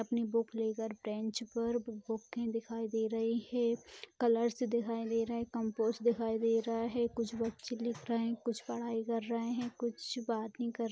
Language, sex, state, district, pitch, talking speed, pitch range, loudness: Hindi, female, Bihar, Vaishali, 230 Hz, 185 wpm, 225-235 Hz, -36 LUFS